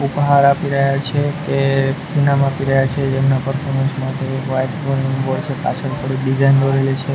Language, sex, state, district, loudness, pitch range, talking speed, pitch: Gujarati, male, Gujarat, Gandhinagar, -17 LUFS, 135-140 Hz, 170 wpm, 135 Hz